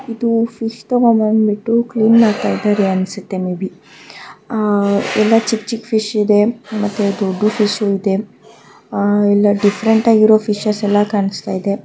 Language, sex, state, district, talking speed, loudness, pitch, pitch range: Kannada, female, Karnataka, Mysore, 135 wpm, -15 LUFS, 210 Hz, 205-225 Hz